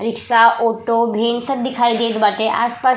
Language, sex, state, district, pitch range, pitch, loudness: Bhojpuri, female, Uttar Pradesh, Ghazipur, 230-240 Hz, 230 Hz, -16 LUFS